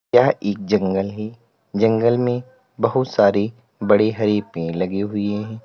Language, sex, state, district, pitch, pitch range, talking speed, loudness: Hindi, male, Uttar Pradesh, Lalitpur, 105 Hz, 100-115 Hz, 150 wpm, -20 LUFS